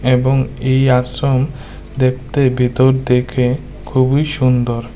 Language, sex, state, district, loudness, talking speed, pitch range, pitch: Bengali, male, Tripura, West Tripura, -15 LUFS, 95 wpm, 125-130 Hz, 130 Hz